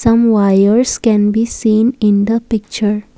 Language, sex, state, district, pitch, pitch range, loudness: English, female, Assam, Kamrup Metropolitan, 220 Hz, 210-230 Hz, -13 LUFS